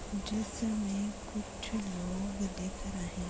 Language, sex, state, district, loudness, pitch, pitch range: Hindi, female, Chhattisgarh, Jashpur, -37 LUFS, 200 Hz, 185-210 Hz